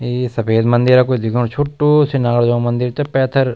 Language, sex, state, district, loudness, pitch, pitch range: Garhwali, male, Uttarakhand, Tehri Garhwal, -15 LUFS, 125 Hz, 120-135 Hz